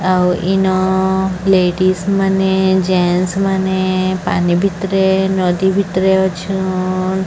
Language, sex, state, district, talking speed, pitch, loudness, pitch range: Odia, male, Odisha, Sambalpur, 90 wpm, 190 Hz, -15 LUFS, 185-190 Hz